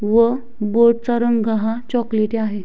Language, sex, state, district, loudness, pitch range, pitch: Marathi, female, Maharashtra, Sindhudurg, -18 LUFS, 220-235 Hz, 230 Hz